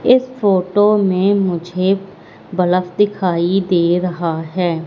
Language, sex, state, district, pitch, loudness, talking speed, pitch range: Hindi, female, Madhya Pradesh, Katni, 185 Hz, -16 LUFS, 110 wpm, 175-200 Hz